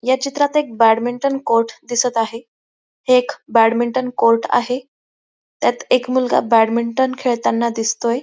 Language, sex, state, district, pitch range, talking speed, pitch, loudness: Marathi, female, Maharashtra, Dhule, 230-260 Hz, 130 wpm, 240 Hz, -17 LUFS